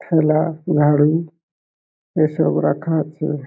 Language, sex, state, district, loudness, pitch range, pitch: Bengali, male, West Bengal, Malda, -18 LUFS, 150-165 Hz, 155 Hz